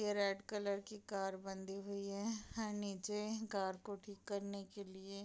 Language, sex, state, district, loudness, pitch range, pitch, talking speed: Hindi, female, Bihar, Madhepura, -44 LUFS, 195-210 Hz, 200 Hz, 185 wpm